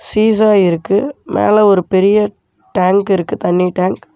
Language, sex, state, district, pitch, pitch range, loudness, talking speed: Tamil, male, Tamil Nadu, Namakkal, 195 Hz, 185-210 Hz, -13 LUFS, 145 wpm